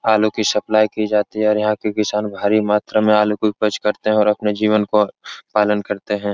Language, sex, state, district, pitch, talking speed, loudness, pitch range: Hindi, male, Uttar Pradesh, Etah, 105 Hz, 235 wpm, -18 LUFS, 105-110 Hz